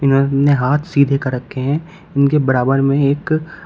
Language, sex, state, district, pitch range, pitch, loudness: Hindi, male, Uttar Pradesh, Shamli, 135-145 Hz, 140 Hz, -16 LUFS